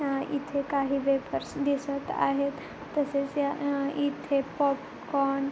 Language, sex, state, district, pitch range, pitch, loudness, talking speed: Marathi, female, Maharashtra, Pune, 275-285 Hz, 280 Hz, -29 LUFS, 100 wpm